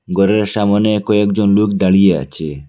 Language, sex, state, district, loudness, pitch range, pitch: Bengali, male, Assam, Hailakandi, -14 LUFS, 95-105 Hz, 100 Hz